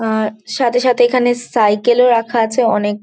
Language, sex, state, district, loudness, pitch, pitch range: Bengali, female, West Bengal, Jhargram, -14 LUFS, 235 Hz, 215-245 Hz